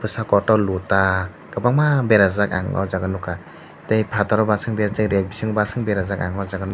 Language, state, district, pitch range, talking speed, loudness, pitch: Kokborok, Tripura, Dhalai, 95-110 Hz, 185 wpm, -20 LUFS, 100 Hz